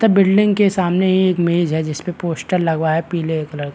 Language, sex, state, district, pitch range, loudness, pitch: Hindi, male, Bihar, Madhepura, 160-190 Hz, -17 LUFS, 175 Hz